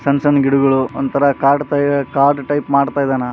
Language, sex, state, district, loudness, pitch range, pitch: Kannada, male, Karnataka, Raichur, -15 LUFS, 135-145 Hz, 140 Hz